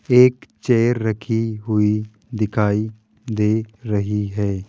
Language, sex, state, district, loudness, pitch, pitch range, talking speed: Hindi, male, Rajasthan, Jaipur, -20 LUFS, 110 Hz, 105-115 Hz, 100 wpm